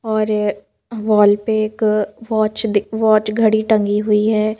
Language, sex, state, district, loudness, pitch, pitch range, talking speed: Hindi, female, Madhya Pradesh, Bhopal, -17 LUFS, 215 Hz, 210-220 Hz, 145 wpm